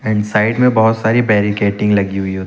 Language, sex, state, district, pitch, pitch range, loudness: Hindi, male, Uttar Pradesh, Lucknow, 105 Hz, 100-110 Hz, -14 LUFS